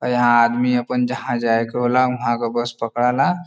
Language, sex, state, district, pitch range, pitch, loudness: Bhojpuri, male, Uttar Pradesh, Varanasi, 120-125 Hz, 120 Hz, -19 LUFS